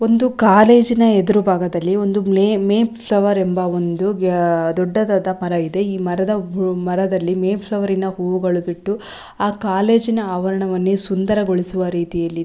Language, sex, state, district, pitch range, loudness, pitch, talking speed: Kannada, female, Karnataka, Belgaum, 180-205 Hz, -17 LUFS, 190 Hz, 130 wpm